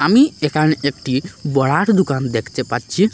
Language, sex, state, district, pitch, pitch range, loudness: Bengali, male, Assam, Hailakandi, 145 Hz, 130-185 Hz, -17 LUFS